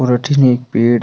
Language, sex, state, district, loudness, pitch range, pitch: Rajasthani, male, Rajasthan, Nagaur, -13 LUFS, 120-130 Hz, 125 Hz